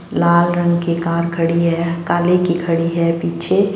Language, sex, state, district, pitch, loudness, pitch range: Hindi, female, Punjab, Fazilka, 170 Hz, -16 LUFS, 170-175 Hz